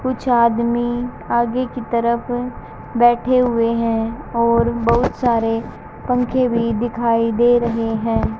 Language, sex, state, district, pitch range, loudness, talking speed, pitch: Hindi, female, Haryana, Jhajjar, 230-245 Hz, -18 LUFS, 120 wpm, 235 Hz